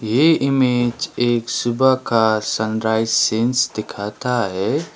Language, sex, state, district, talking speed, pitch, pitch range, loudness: Hindi, male, Sikkim, Gangtok, 110 wpm, 120 Hz, 110-130 Hz, -18 LUFS